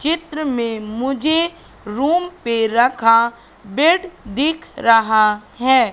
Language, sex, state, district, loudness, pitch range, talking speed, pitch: Hindi, female, Madhya Pradesh, Katni, -17 LUFS, 225-310 Hz, 100 wpm, 250 Hz